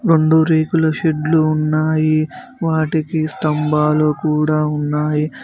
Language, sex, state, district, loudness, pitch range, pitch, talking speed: Telugu, male, Telangana, Mahabubabad, -16 LUFS, 150-160 Hz, 155 Hz, 90 wpm